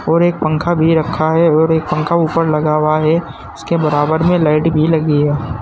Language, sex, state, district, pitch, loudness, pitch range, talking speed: Hindi, male, Uttar Pradesh, Saharanpur, 155 Hz, -14 LUFS, 150-165 Hz, 215 wpm